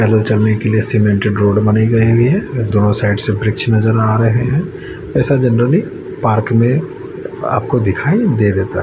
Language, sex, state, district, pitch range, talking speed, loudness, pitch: Hindi, male, Chandigarh, Chandigarh, 105-125 Hz, 175 wpm, -14 LUFS, 110 Hz